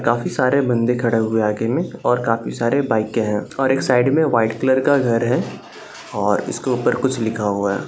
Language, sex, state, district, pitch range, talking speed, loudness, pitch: Hindi, male, Bihar, Saharsa, 110-130 Hz, 220 wpm, -19 LUFS, 120 Hz